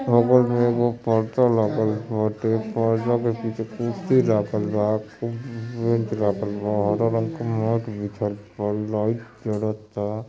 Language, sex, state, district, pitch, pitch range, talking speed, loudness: Bhojpuri, male, Uttar Pradesh, Ghazipur, 110 Hz, 105-115 Hz, 140 wpm, -23 LUFS